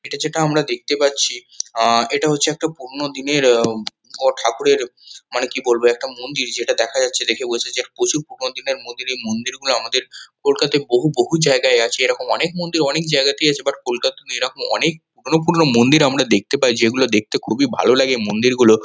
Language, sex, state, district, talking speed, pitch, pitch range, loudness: Bengali, male, West Bengal, Kolkata, 185 wpm, 150 Hz, 125-185 Hz, -18 LUFS